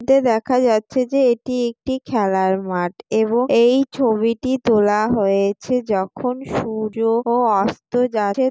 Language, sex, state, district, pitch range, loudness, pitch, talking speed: Bengali, female, West Bengal, Jalpaiguri, 210-250 Hz, -18 LUFS, 230 Hz, 125 wpm